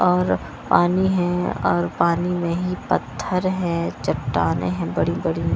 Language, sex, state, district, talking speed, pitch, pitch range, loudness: Hindi, female, Punjab, Kapurthala, 150 wpm, 180 Hz, 170-180 Hz, -21 LUFS